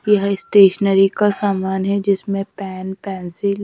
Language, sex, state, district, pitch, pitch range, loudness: Hindi, female, Madhya Pradesh, Dhar, 195 Hz, 190-200 Hz, -17 LUFS